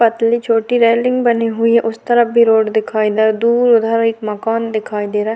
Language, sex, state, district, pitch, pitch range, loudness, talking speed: Hindi, female, Uttarakhand, Tehri Garhwal, 230 Hz, 220-235 Hz, -14 LUFS, 225 wpm